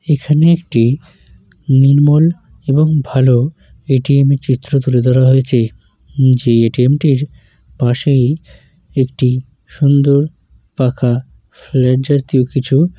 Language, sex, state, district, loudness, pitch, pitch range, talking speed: Bengali, male, West Bengal, Jalpaiguri, -13 LUFS, 135 Hz, 125-145 Hz, 115 wpm